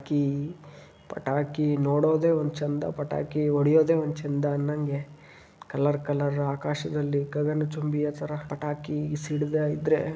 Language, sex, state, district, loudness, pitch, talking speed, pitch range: Kannada, male, Karnataka, Dharwad, -27 LUFS, 150 Hz, 100 wpm, 145-150 Hz